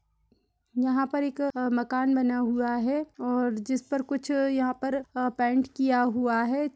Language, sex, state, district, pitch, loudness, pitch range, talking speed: Hindi, female, Bihar, Purnia, 255 Hz, -27 LUFS, 245-275 Hz, 160 wpm